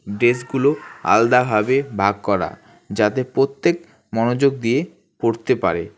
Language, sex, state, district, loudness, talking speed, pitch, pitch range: Bengali, male, West Bengal, Alipurduar, -19 LUFS, 100 wpm, 120 Hz, 105-135 Hz